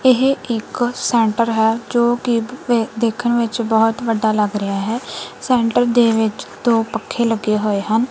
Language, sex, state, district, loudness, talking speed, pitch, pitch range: Punjabi, female, Punjab, Kapurthala, -18 LUFS, 155 wpm, 230 Hz, 220-240 Hz